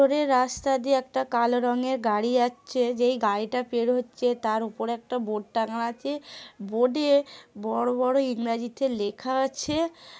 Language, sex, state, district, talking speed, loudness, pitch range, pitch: Bengali, female, West Bengal, Paschim Medinipur, 160 wpm, -26 LUFS, 230-265 Hz, 245 Hz